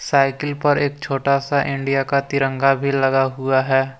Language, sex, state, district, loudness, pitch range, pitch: Hindi, male, Jharkhand, Deoghar, -19 LUFS, 135-140 Hz, 135 Hz